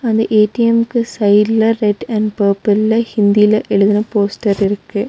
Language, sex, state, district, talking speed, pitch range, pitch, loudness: Tamil, female, Tamil Nadu, Nilgiris, 120 wpm, 205-225 Hz, 210 Hz, -14 LUFS